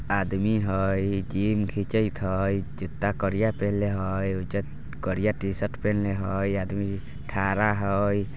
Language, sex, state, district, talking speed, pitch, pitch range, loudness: Bajjika, male, Bihar, Vaishali, 120 wpm, 100 Hz, 95-100 Hz, -27 LUFS